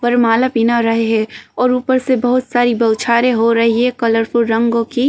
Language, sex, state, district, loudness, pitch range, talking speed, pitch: Hindi, female, Uttar Pradesh, Jyotiba Phule Nagar, -14 LUFS, 230-250 Hz, 190 wpm, 235 Hz